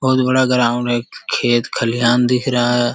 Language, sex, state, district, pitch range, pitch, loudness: Hindi, male, Bihar, Jamui, 120-125 Hz, 120 Hz, -16 LUFS